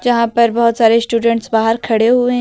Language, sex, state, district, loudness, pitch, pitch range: Hindi, female, Uttar Pradesh, Lucknow, -13 LUFS, 230 Hz, 230-240 Hz